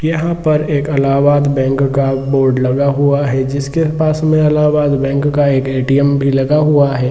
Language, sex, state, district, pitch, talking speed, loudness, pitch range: Hindi, male, Jharkhand, Jamtara, 140 Hz, 170 wpm, -13 LUFS, 135-150 Hz